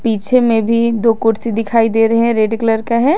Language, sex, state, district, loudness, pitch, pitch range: Hindi, female, Jharkhand, Garhwa, -14 LUFS, 230 Hz, 225-235 Hz